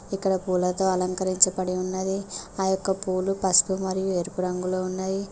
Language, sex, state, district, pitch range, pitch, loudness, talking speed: Telugu, female, Telangana, Mahabubabad, 185-190 Hz, 190 Hz, -24 LUFS, 135 wpm